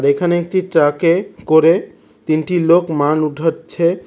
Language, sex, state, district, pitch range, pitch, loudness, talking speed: Bengali, male, West Bengal, Cooch Behar, 155-175 Hz, 165 Hz, -15 LUFS, 130 wpm